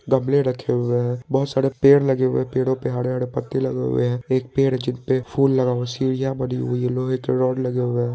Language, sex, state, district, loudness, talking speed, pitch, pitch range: Hindi, male, Bihar, Saharsa, -21 LUFS, 265 wpm, 130 Hz, 125-135 Hz